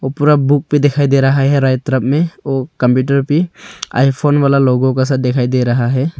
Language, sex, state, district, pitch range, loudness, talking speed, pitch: Hindi, male, Arunachal Pradesh, Longding, 130-145 Hz, -14 LUFS, 215 wpm, 135 Hz